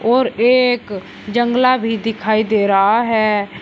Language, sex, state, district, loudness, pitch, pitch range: Hindi, male, Uttar Pradesh, Shamli, -15 LUFS, 225 Hz, 210-240 Hz